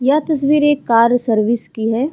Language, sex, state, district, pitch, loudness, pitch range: Hindi, female, Bihar, Vaishali, 245 Hz, -15 LUFS, 230-295 Hz